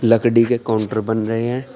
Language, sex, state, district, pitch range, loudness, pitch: Hindi, male, Uttar Pradesh, Shamli, 110-120 Hz, -18 LUFS, 115 Hz